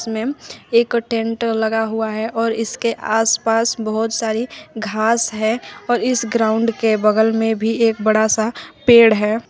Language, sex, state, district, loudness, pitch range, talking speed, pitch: Hindi, female, Uttar Pradesh, Shamli, -17 LUFS, 220-230 Hz, 150 wpm, 225 Hz